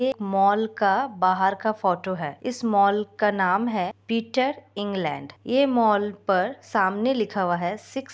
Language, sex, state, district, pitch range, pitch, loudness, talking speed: Hindi, female, Bihar, Kishanganj, 190-235 Hz, 205 Hz, -24 LUFS, 160 wpm